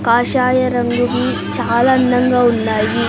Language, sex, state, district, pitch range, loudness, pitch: Telugu, female, Andhra Pradesh, Sri Satya Sai, 235-250 Hz, -15 LUFS, 245 Hz